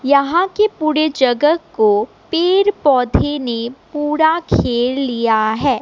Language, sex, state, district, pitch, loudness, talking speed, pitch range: Hindi, female, Assam, Kamrup Metropolitan, 285 Hz, -16 LUFS, 125 wpm, 245-315 Hz